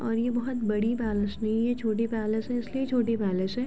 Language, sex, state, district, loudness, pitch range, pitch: Hindi, female, Uttar Pradesh, Gorakhpur, -28 LUFS, 215-245 Hz, 225 Hz